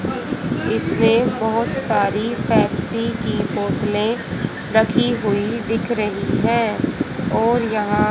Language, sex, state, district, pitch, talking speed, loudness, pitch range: Hindi, female, Haryana, Jhajjar, 225 Hz, 95 wpm, -19 LUFS, 210-230 Hz